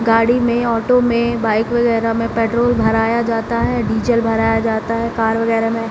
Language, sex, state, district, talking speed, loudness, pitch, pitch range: Hindi, female, Bihar, Gaya, 185 wpm, -16 LUFS, 230 Hz, 225-235 Hz